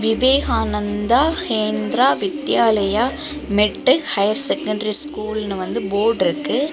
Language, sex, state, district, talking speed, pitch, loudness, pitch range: Tamil, female, Tamil Nadu, Kanyakumari, 90 wpm, 225 Hz, -18 LUFS, 210-275 Hz